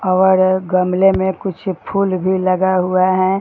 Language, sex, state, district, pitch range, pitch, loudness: Hindi, female, Bihar, Jahanabad, 185-190 Hz, 185 Hz, -15 LUFS